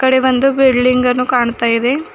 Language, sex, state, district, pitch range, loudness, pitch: Kannada, female, Karnataka, Bidar, 245-260 Hz, -13 LUFS, 255 Hz